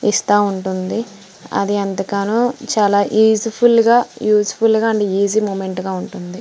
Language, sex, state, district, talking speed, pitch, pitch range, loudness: Telugu, female, Andhra Pradesh, Srikakulam, 120 wpm, 205 Hz, 195-225 Hz, -16 LUFS